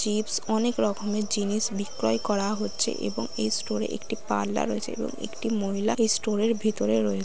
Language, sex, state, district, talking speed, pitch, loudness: Bengali, female, West Bengal, Malda, 175 wpm, 210 Hz, -27 LUFS